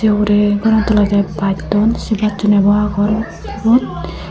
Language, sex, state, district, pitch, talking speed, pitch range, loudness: Chakma, female, Tripura, Unakoti, 210 Hz, 125 wpm, 205-215 Hz, -14 LUFS